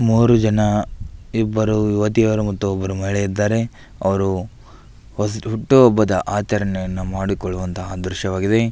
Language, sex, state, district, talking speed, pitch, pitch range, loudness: Kannada, male, Karnataka, Belgaum, 95 wpm, 105 Hz, 95-110 Hz, -19 LUFS